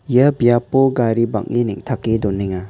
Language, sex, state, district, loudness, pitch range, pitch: Garo, male, Meghalaya, West Garo Hills, -17 LUFS, 110-130 Hz, 120 Hz